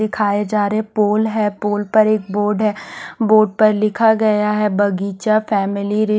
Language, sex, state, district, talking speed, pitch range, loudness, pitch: Hindi, female, Bihar, West Champaran, 175 wpm, 205-215 Hz, -17 LUFS, 210 Hz